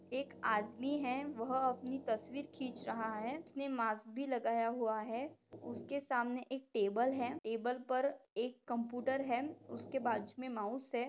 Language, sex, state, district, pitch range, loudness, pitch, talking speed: Hindi, female, Maharashtra, Pune, 230-265 Hz, -39 LUFS, 250 Hz, 155 wpm